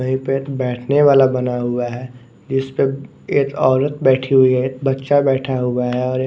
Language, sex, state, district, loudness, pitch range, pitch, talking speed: Hindi, male, Bihar, West Champaran, -17 LUFS, 125-135 Hz, 130 Hz, 220 wpm